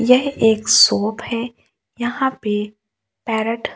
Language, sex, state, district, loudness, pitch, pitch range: Hindi, female, Delhi, New Delhi, -17 LUFS, 230 Hz, 220-245 Hz